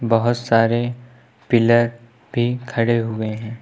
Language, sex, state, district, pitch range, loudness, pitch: Hindi, male, Uttar Pradesh, Lucknow, 115-120 Hz, -19 LUFS, 120 Hz